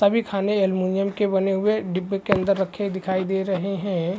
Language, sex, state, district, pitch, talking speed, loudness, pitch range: Hindi, male, Chhattisgarh, Bilaspur, 195 Hz, 185 wpm, -23 LUFS, 190-200 Hz